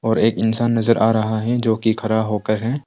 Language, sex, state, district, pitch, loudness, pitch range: Hindi, male, Arunachal Pradesh, Longding, 110 Hz, -18 LUFS, 110-115 Hz